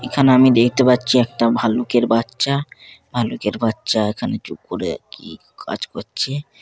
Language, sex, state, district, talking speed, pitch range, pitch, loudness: Bengali, male, West Bengal, Kolkata, 155 wpm, 115-130 Hz, 125 Hz, -18 LUFS